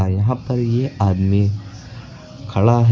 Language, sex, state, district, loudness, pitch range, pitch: Hindi, male, Uttar Pradesh, Lucknow, -19 LUFS, 100-125 Hz, 115 Hz